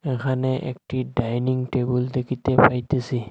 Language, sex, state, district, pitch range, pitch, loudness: Bengali, male, Assam, Hailakandi, 125-130 Hz, 130 Hz, -23 LUFS